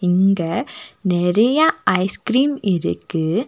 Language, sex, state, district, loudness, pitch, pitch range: Tamil, female, Tamil Nadu, Nilgiris, -18 LUFS, 190 Hz, 180-255 Hz